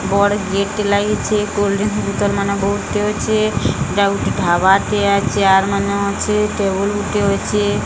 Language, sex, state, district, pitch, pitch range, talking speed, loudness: Odia, female, Odisha, Sambalpur, 200 Hz, 200-210 Hz, 155 wpm, -16 LUFS